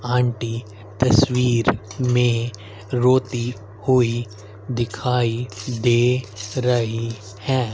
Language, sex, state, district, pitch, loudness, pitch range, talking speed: Hindi, male, Haryana, Rohtak, 120 Hz, -21 LUFS, 105-125 Hz, 70 wpm